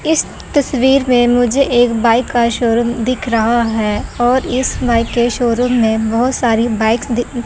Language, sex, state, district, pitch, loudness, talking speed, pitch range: Hindi, female, Chandigarh, Chandigarh, 240 Hz, -14 LUFS, 175 wpm, 230-250 Hz